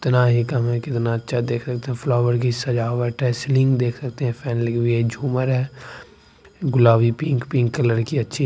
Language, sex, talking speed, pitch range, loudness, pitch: Maithili, male, 200 wpm, 120-130 Hz, -21 LUFS, 120 Hz